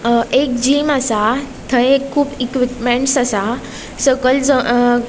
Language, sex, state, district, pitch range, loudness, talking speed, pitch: Konkani, female, Goa, North and South Goa, 240-275 Hz, -15 LUFS, 130 wpm, 250 Hz